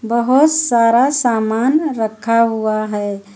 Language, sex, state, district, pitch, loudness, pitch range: Hindi, female, Uttar Pradesh, Lucknow, 230 Hz, -15 LUFS, 220-255 Hz